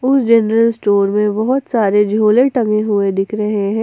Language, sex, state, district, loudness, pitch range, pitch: Hindi, female, Jharkhand, Ranchi, -14 LUFS, 205-230 Hz, 215 Hz